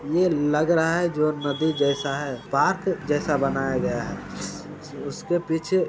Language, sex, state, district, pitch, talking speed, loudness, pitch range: Hindi, male, Bihar, Saran, 155 Hz, 155 wpm, -24 LUFS, 145-175 Hz